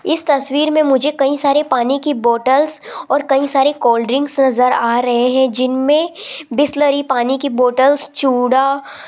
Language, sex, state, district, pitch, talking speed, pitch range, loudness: Hindi, female, Rajasthan, Jaipur, 275 Hz, 165 wpm, 255-290 Hz, -14 LUFS